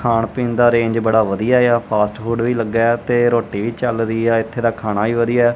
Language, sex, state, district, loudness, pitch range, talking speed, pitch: Punjabi, male, Punjab, Kapurthala, -17 LUFS, 115-120 Hz, 250 wpm, 115 Hz